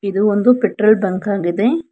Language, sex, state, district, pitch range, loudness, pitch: Kannada, female, Karnataka, Bangalore, 200-225 Hz, -15 LUFS, 210 Hz